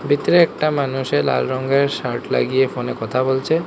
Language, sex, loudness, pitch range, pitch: Bengali, male, -19 LUFS, 130-150 Hz, 135 Hz